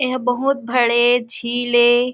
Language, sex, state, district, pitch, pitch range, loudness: Chhattisgarhi, female, Chhattisgarh, Kabirdham, 245 Hz, 240-250 Hz, -17 LUFS